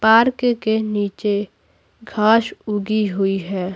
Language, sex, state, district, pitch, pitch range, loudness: Hindi, female, Bihar, Patna, 210 Hz, 200-220 Hz, -19 LUFS